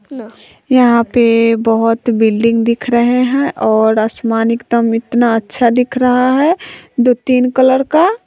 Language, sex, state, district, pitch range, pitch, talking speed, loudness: Hindi, female, Bihar, West Champaran, 230-255 Hz, 235 Hz, 145 wpm, -12 LUFS